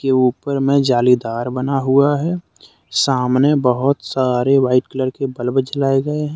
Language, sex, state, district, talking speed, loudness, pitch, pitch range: Hindi, male, Jharkhand, Deoghar, 150 wpm, -17 LUFS, 135 Hz, 125-140 Hz